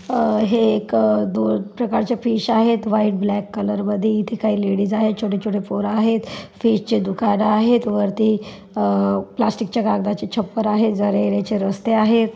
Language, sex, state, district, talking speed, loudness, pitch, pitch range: Marathi, female, Maharashtra, Pune, 165 wpm, -19 LUFS, 210 Hz, 200-225 Hz